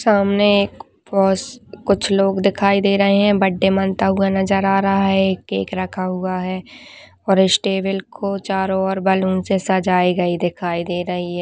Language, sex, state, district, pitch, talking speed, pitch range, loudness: Hindi, female, Chhattisgarh, Raigarh, 195 Hz, 185 wpm, 185-200 Hz, -18 LUFS